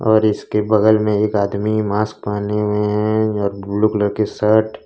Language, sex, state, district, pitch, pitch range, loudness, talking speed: Hindi, male, Jharkhand, Ranchi, 105 Hz, 105-110 Hz, -17 LUFS, 185 wpm